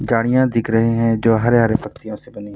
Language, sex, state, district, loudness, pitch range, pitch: Hindi, male, Bihar, Purnia, -16 LUFS, 110-115 Hz, 115 Hz